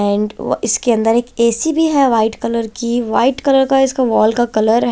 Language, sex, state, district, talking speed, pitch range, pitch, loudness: Hindi, female, Chandigarh, Chandigarh, 220 wpm, 225-260 Hz, 235 Hz, -15 LUFS